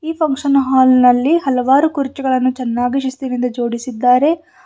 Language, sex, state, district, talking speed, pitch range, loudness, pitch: Kannada, female, Karnataka, Bidar, 115 wpm, 250-280 Hz, -15 LUFS, 260 Hz